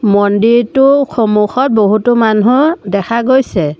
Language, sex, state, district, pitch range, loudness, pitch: Assamese, female, Assam, Sonitpur, 210-260 Hz, -11 LUFS, 225 Hz